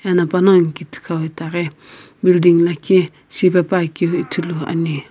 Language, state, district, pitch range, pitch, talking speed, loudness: Sumi, Nagaland, Kohima, 165-180 Hz, 170 Hz, 105 wpm, -16 LUFS